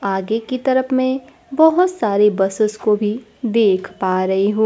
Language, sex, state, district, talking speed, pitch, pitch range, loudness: Hindi, female, Bihar, Kaimur, 165 wpm, 215 Hz, 200-260 Hz, -17 LUFS